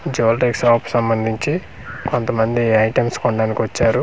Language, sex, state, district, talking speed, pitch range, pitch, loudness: Telugu, male, Andhra Pradesh, Manyam, 120 wpm, 110-125 Hz, 120 Hz, -18 LUFS